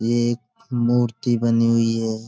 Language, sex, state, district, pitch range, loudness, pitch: Hindi, male, Uttar Pradesh, Budaun, 115-120 Hz, -20 LUFS, 115 Hz